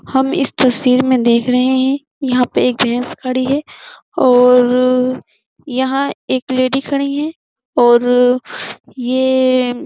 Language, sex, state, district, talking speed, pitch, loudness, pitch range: Hindi, female, Uttar Pradesh, Jyotiba Phule Nagar, 135 wpm, 255 Hz, -14 LUFS, 250-270 Hz